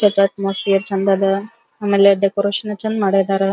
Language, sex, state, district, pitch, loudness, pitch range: Kannada, female, Karnataka, Belgaum, 200 Hz, -17 LUFS, 195-205 Hz